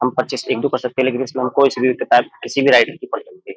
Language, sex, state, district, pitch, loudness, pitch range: Hindi, male, Uttar Pradesh, Jyotiba Phule Nagar, 130 Hz, -17 LUFS, 125-140 Hz